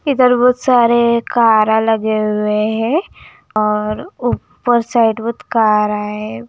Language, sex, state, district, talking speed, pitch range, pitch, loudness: Hindi, female, Himachal Pradesh, Shimla, 120 wpm, 215-240 Hz, 225 Hz, -15 LUFS